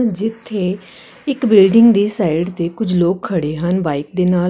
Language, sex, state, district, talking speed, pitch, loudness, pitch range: Punjabi, female, Karnataka, Bangalore, 175 wpm, 190 Hz, -15 LUFS, 175-220 Hz